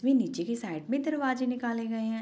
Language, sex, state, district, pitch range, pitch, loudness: Hindi, female, Bihar, Gopalganj, 225-265 Hz, 245 Hz, -31 LUFS